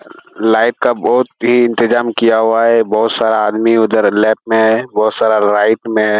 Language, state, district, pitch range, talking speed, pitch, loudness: Surjapuri, Bihar, Kishanganj, 110-115 Hz, 195 wpm, 110 Hz, -12 LUFS